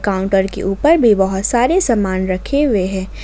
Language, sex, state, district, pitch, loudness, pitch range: Hindi, female, Jharkhand, Ranchi, 195 Hz, -15 LUFS, 190-240 Hz